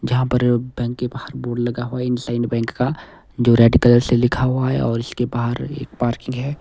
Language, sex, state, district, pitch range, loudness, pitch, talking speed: Hindi, male, Himachal Pradesh, Shimla, 120-125 Hz, -19 LUFS, 120 Hz, 225 wpm